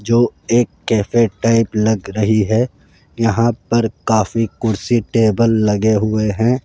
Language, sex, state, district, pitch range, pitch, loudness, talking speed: Hindi, male, Rajasthan, Jaipur, 110-115 Hz, 115 Hz, -16 LUFS, 135 wpm